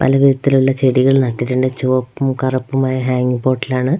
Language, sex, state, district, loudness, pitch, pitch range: Malayalam, female, Kerala, Wayanad, -15 LUFS, 130 Hz, 130-135 Hz